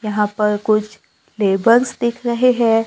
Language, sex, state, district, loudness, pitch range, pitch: Hindi, male, Maharashtra, Gondia, -17 LUFS, 210-235 Hz, 220 Hz